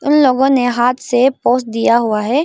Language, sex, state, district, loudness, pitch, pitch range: Hindi, female, Arunachal Pradesh, Lower Dibang Valley, -14 LUFS, 250 Hz, 240-270 Hz